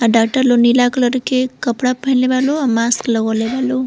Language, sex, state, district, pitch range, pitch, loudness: Bhojpuri, female, Uttar Pradesh, Varanasi, 235-255 Hz, 250 Hz, -15 LUFS